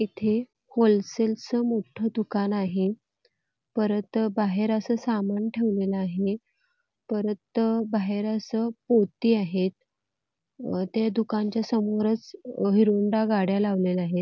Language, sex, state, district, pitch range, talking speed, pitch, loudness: Marathi, female, Karnataka, Belgaum, 205-225 Hz, 95 wpm, 220 Hz, -26 LUFS